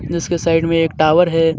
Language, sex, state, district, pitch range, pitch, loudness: Hindi, male, Jharkhand, Deoghar, 160-170 Hz, 165 Hz, -15 LUFS